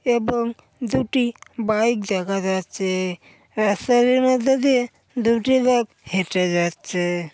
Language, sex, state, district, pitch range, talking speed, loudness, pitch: Bengali, female, West Bengal, Paschim Medinipur, 190-245 Hz, 105 wpm, -21 LUFS, 230 Hz